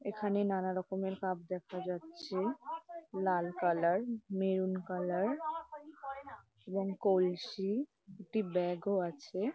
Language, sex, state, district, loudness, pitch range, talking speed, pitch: Bengali, female, West Bengal, Kolkata, -36 LUFS, 185-235 Hz, 100 wpm, 190 Hz